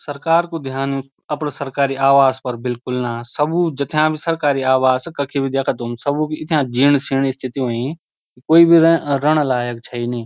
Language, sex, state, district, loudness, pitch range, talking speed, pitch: Garhwali, male, Uttarakhand, Uttarkashi, -18 LUFS, 130-155 Hz, 175 wpm, 140 Hz